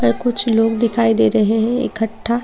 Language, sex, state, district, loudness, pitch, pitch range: Hindi, female, Tripura, Unakoti, -16 LUFS, 225 Hz, 225-235 Hz